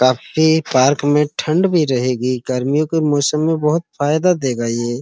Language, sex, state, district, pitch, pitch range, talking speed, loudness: Hindi, male, Uttar Pradesh, Muzaffarnagar, 145 Hz, 130-160 Hz, 165 wpm, -16 LUFS